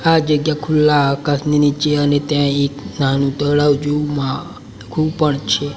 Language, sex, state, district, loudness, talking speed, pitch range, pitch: Gujarati, male, Gujarat, Valsad, -17 LUFS, 155 wpm, 140-150 Hz, 145 Hz